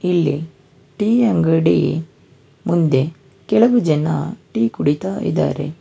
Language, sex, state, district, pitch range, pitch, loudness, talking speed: Kannada, male, Karnataka, Bangalore, 140-175 Hz, 155 Hz, -18 LUFS, 95 wpm